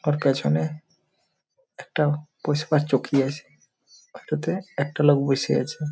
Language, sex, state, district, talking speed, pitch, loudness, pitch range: Bengali, male, West Bengal, Malda, 120 wpm, 150 Hz, -24 LUFS, 140-155 Hz